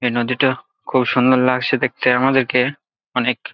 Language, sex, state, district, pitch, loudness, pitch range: Bengali, male, West Bengal, Jalpaiguri, 125 Hz, -17 LUFS, 125-130 Hz